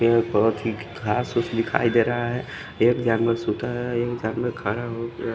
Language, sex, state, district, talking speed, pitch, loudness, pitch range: Hindi, male, Odisha, Khordha, 190 wpm, 115 Hz, -24 LUFS, 115-120 Hz